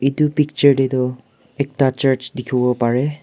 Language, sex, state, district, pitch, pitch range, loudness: Nagamese, male, Nagaland, Kohima, 135 Hz, 125-145 Hz, -18 LUFS